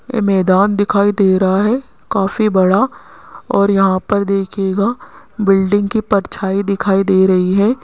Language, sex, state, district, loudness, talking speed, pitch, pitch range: Hindi, female, Rajasthan, Jaipur, -14 LUFS, 145 wpm, 200 Hz, 190-205 Hz